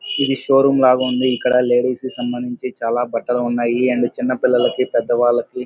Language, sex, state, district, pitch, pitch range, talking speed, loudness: Telugu, male, Andhra Pradesh, Guntur, 125 Hz, 120-130 Hz, 190 wpm, -17 LUFS